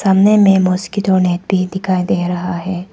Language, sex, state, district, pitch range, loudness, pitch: Hindi, female, Arunachal Pradesh, Papum Pare, 180-195 Hz, -15 LUFS, 185 Hz